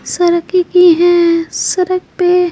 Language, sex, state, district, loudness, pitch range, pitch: Hindi, female, Bihar, Patna, -12 LUFS, 345-365 Hz, 355 Hz